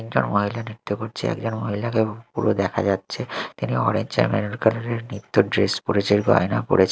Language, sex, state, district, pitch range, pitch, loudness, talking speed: Bengali, male, Odisha, Malkangiri, 100-115 Hz, 105 Hz, -23 LUFS, 175 wpm